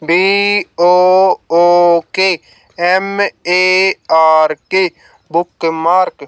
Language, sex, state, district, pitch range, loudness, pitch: Hindi, male, Haryana, Jhajjar, 165-185 Hz, -12 LUFS, 175 Hz